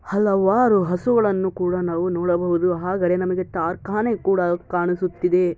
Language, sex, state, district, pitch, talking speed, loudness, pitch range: Kannada, female, Karnataka, Shimoga, 180 Hz, 105 wpm, -21 LUFS, 175-195 Hz